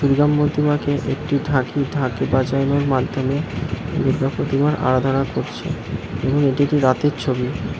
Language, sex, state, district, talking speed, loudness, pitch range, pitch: Bengali, male, West Bengal, Alipurduar, 125 wpm, -20 LUFS, 130-145 Hz, 135 Hz